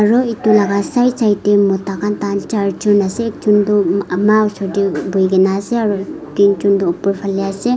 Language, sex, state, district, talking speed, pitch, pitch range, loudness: Nagamese, female, Nagaland, Kohima, 200 wpm, 200 Hz, 195-210 Hz, -15 LUFS